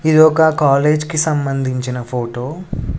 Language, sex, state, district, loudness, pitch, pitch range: Telugu, male, Andhra Pradesh, Sri Satya Sai, -16 LUFS, 140 Hz, 125-155 Hz